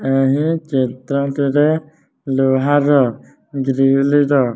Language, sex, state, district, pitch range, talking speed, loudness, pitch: Odia, male, Odisha, Nuapada, 135-145 Hz, 65 wpm, -16 LUFS, 140 Hz